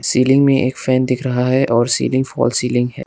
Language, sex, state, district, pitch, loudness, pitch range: Hindi, male, Arunachal Pradesh, Lower Dibang Valley, 130 Hz, -16 LUFS, 125-130 Hz